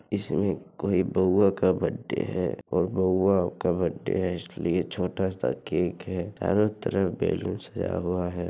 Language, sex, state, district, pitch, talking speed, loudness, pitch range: Hindi, male, Bihar, Madhepura, 90 Hz, 155 wpm, -27 LUFS, 90-95 Hz